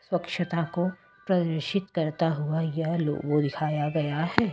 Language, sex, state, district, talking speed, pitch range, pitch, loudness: Hindi, female, Delhi, New Delhi, 130 wpm, 150-175 Hz, 165 Hz, -28 LUFS